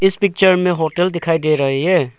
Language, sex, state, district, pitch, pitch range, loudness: Hindi, male, Arunachal Pradesh, Lower Dibang Valley, 175 Hz, 155-185 Hz, -16 LUFS